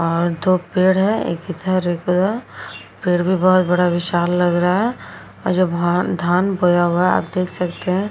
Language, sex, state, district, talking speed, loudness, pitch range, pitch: Hindi, female, Uttar Pradesh, Jyotiba Phule Nagar, 185 wpm, -18 LUFS, 175-185 Hz, 180 Hz